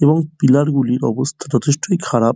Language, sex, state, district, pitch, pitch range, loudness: Bengali, male, West Bengal, Dakshin Dinajpur, 140 Hz, 125-150 Hz, -17 LUFS